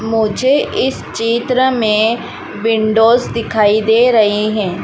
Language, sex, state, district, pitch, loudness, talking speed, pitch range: Hindi, female, Madhya Pradesh, Dhar, 225 Hz, -14 LUFS, 110 wpm, 215-235 Hz